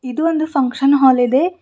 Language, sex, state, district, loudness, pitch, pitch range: Kannada, female, Karnataka, Bidar, -15 LUFS, 275 Hz, 260-315 Hz